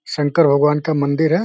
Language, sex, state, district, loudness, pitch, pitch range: Hindi, male, Uttar Pradesh, Deoria, -16 LUFS, 150 Hz, 145-160 Hz